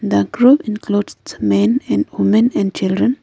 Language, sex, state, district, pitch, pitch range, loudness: English, female, Arunachal Pradesh, Lower Dibang Valley, 210 Hz, 185-245 Hz, -16 LUFS